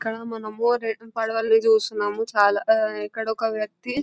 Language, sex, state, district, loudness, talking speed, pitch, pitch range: Telugu, female, Telangana, Nalgonda, -23 LUFS, 150 wpm, 225 Hz, 215-225 Hz